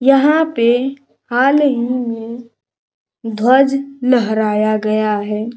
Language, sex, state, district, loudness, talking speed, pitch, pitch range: Hindi, male, Uttar Pradesh, Ghazipur, -15 LUFS, 95 wpm, 240 Hz, 220-270 Hz